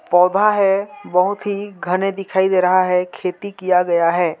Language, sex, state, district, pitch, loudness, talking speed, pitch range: Hindi, male, Chhattisgarh, Jashpur, 185 Hz, -17 LUFS, 175 wpm, 180-200 Hz